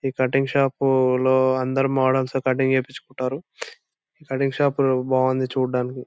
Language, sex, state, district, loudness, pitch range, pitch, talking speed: Telugu, male, Andhra Pradesh, Anantapur, -21 LUFS, 130-135 Hz, 130 Hz, 120 wpm